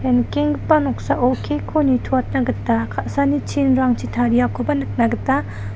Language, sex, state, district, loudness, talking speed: Garo, female, Meghalaya, South Garo Hills, -19 LUFS, 125 wpm